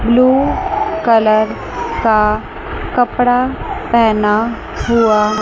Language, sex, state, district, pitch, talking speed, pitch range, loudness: Hindi, male, Chandigarh, Chandigarh, 225 Hz, 65 wpm, 215-245 Hz, -14 LUFS